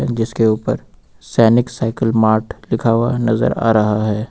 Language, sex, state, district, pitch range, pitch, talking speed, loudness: Hindi, male, Uttar Pradesh, Lucknow, 110-115 Hz, 115 Hz, 165 wpm, -16 LUFS